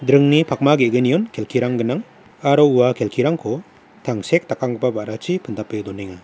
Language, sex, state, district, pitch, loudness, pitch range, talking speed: Garo, male, Meghalaya, West Garo Hills, 125 Hz, -19 LUFS, 110-140 Hz, 125 wpm